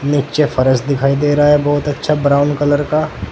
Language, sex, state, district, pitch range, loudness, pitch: Hindi, male, Uttar Pradesh, Saharanpur, 140-145 Hz, -14 LUFS, 145 Hz